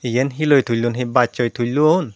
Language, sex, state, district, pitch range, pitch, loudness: Chakma, female, Tripura, Dhalai, 120-145 Hz, 125 Hz, -18 LUFS